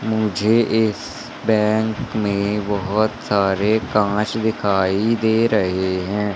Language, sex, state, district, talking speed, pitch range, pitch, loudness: Hindi, male, Madhya Pradesh, Katni, 105 wpm, 100-110 Hz, 105 Hz, -19 LUFS